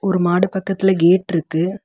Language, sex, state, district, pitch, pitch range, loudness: Tamil, female, Tamil Nadu, Chennai, 185 Hz, 175-190 Hz, -17 LUFS